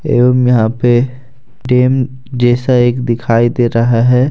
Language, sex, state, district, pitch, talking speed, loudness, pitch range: Hindi, male, Jharkhand, Deoghar, 125 Hz, 140 wpm, -12 LUFS, 120-130 Hz